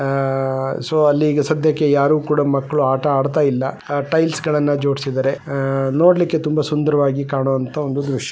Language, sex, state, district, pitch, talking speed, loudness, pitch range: Kannada, male, Karnataka, Bellary, 145 Hz, 160 wpm, -18 LUFS, 135-150 Hz